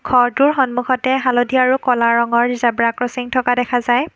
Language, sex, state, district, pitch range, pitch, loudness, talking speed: Assamese, female, Assam, Kamrup Metropolitan, 245-255 Hz, 245 Hz, -16 LUFS, 160 wpm